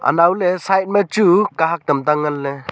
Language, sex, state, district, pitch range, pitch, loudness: Wancho, male, Arunachal Pradesh, Longding, 150-190 Hz, 170 Hz, -16 LUFS